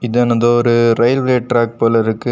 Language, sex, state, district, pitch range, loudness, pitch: Tamil, male, Tamil Nadu, Kanyakumari, 115-120 Hz, -14 LUFS, 120 Hz